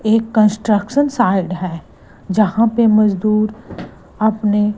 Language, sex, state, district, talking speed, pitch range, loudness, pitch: Hindi, female, Gujarat, Gandhinagar, 100 wpm, 205-220 Hz, -16 LUFS, 215 Hz